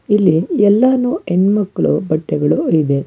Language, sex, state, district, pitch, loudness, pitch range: Kannada, male, Karnataka, Bangalore, 185 Hz, -15 LUFS, 155-210 Hz